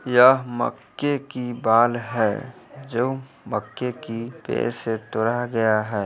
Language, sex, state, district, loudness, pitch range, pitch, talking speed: Hindi, male, Bihar, Vaishali, -23 LUFS, 115-130 Hz, 120 Hz, 130 wpm